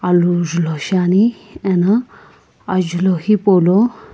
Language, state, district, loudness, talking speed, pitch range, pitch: Sumi, Nagaland, Kohima, -16 LUFS, 100 wpm, 175-205 Hz, 185 Hz